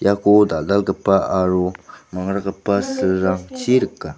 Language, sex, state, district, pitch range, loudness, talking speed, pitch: Garo, male, Meghalaya, West Garo Hills, 95-100 Hz, -18 LUFS, 85 wpm, 95 Hz